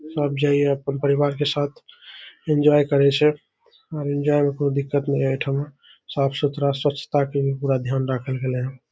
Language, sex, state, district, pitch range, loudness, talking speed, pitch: Maithili, male, Bihar, Saharsa, 140-145 Hz, -22 LUFS, 190 wpm, 145 Hz